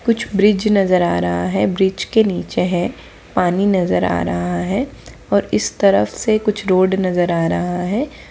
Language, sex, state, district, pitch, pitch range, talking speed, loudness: Hindi, female, Bihar, Bhagalpur, 185 Hz, 170-200 Hz, 180 wpm, -17 LUFS